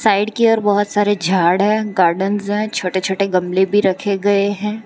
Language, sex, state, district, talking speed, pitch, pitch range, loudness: Hindi, female, Gujarat, Valsad, 210 wpm, 205 Hz, 190-205 Hz, -16 LUFS